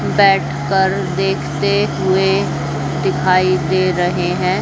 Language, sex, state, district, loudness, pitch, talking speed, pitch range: Hindi, female, Haryana, Charkhi Dadri, -16 LUFS, 185 Hz, 105 wpm, 145-190 Hz